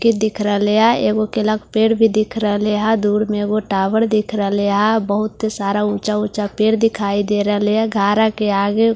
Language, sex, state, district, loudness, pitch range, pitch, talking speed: Hindi, female, Bihar, Katihar, -17 LUFS, 205-220 Hz, 210 Hz, 145 wpm